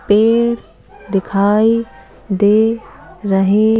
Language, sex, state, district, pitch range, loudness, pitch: Hindi, female, Madhya Pradesh, Bhopal, 195-225 Hz, -14 LUFS, 210 Hz